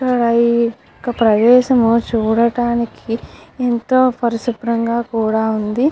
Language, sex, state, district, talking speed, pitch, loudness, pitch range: Telugu, female, Andhra Pradesh, Guntur, 80 wpm, 235 Hz, -16 LUFS, 230-240 Hz